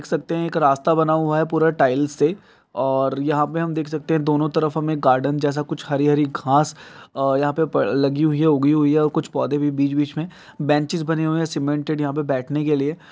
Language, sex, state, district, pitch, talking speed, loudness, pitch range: Maithili, male, Bihar, Samastipur, 150 Hz, 235 wpm, -20 LUFS, 145-160 Hz